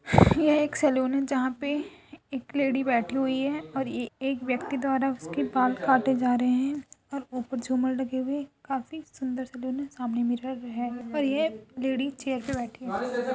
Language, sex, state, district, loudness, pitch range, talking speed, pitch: Hindi, female, Uttar Pradesh, Etah, -28 LUFS, 250-275 Hz, 185 wpm, 260 Hz